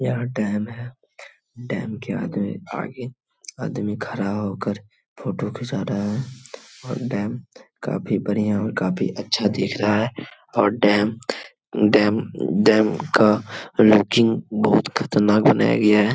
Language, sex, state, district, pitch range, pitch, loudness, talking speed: Hindi, male, Bihar, Jamui, 105-115 Hz, 105 Hz, -21 LUFS, 130 wpm